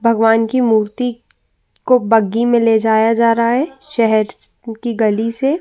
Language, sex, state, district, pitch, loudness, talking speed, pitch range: Hindi, female, Uttar Pradesh, Muzaffarnagar, 230 Hz, -15 LUFS, 170 wpm, 225-245 Hz